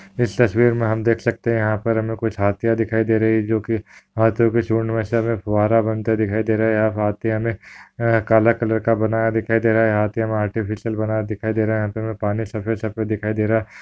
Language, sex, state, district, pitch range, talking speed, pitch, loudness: Hindi, male, Maharashtra, Solapur, 110-115 Hz, 255 wpm, 110 Hz, -20 LUFS